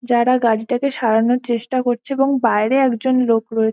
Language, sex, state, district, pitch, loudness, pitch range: Bengali, female, West Bengal, Malda, 245 Hz, -17 LUFS, 230-255 Hz